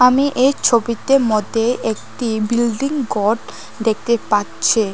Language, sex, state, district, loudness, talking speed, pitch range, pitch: Bengali, female, Tripura, West Tripura, -17 LUFS, 110 wpm, 220-250 Hz, 235 Hz